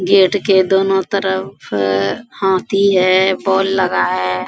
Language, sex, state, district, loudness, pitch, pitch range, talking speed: Hindi, female, Bihar, Bhagalpur, -15 LUFS, 190 Hz, 180-195 Hz, 120 wpm